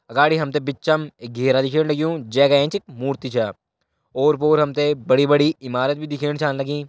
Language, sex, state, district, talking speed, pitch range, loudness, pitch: Hindi, male, Uttarakhand, Tehri Garhwal, 210 wpm, 135-150 Hz, -20 LUFS, 145 Hz